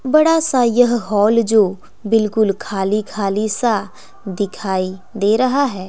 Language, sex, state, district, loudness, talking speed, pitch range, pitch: Hindi, female, Bihar, West Champaran, -17 LUFS, 130 wpm, 200-240 Hz, 215 Hz